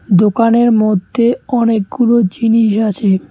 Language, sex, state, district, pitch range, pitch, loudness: Bengali, male, West Bengal, Cooch Behar, 210-235 Hz, 225 Hz, -13 LUFS